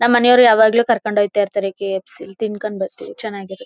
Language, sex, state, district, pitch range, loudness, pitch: Kannada, female, Karnataka, Mysore, 200-230 Hz, -16 LUFS, 215 Hz